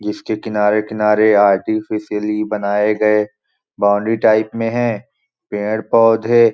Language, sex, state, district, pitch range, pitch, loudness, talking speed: Hindi, male, Chhattisgarh, Balrampur, 105-110 Hz, 105 Hz, -16 LUFS, 110 wpm